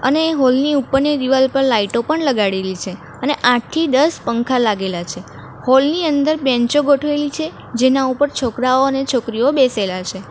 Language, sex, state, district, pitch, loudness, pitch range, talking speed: Gujarati, female, Gujarat, Valsad, 265 Hz, -16 LUFS, 235-290 Hz, 155 wpm